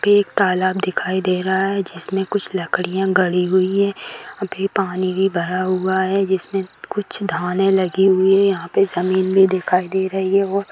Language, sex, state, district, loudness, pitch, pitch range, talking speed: Hindi, female, Bihar, Samastipur, -18 LUFS, 190 Hz, 185-195 Hz, 185 wpm